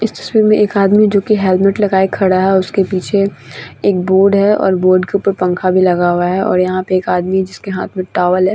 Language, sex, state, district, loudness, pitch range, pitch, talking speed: Hindi, female, Bihar, Vaishali, -13 LUFS, 185-200 Hz, 190 Hz, 225 wpm